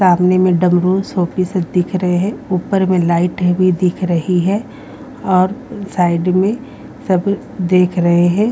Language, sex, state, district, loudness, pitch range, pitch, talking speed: Hindi, female, Haryana, Rohtak, -15 LUFS, 180-195 Hz, 185 Hz, 150 wpm